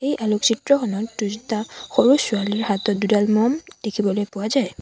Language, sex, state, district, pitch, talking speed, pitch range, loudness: Assamese, female, Assam, Sonitpur, 215 Hz, 135 wpm, 205-240 Hz, -21 LUFS